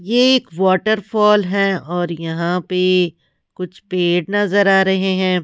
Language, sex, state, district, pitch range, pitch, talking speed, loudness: Hindi, female, Haryana, Rohtak, 175-200 Hz, 185 Hz, 145 wpm, -16 LUFS